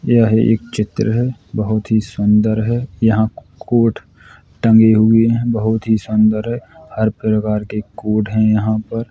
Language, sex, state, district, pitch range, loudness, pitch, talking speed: Bundeli, male, Uttar Pradesh, Jalaun, 110-115 Hz, -16 LUFS, 110 Hz, 160 wpm